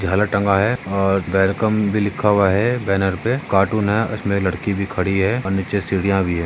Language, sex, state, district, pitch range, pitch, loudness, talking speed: Hindi, male, Maharashtra, Sindhudurg, 95-105 Hz, 100 Hz, -19 LUFS, 225 wpm